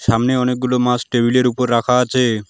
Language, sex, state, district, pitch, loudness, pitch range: Bengali, male, West Bengal, Alipurduar, 125 Hz, -16 LUFS, 120-125 Hz